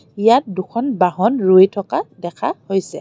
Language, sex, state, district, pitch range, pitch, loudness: Assamese, female, Assam, Kamrup Metropolitan, 185-230 Hz, 195 Hz, -16 LUFS